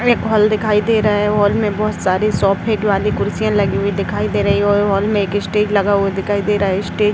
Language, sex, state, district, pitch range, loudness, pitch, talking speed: Hindi, female, Uttar Pradesh, Etah, 200-215 Hz, -16 LUFS, 205 Hz, 250 wpm